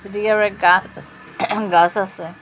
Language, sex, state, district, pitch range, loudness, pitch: Bengali, female, Assam, Hailakandi, 175-210 Hz, -17 LUFS, 195 Hz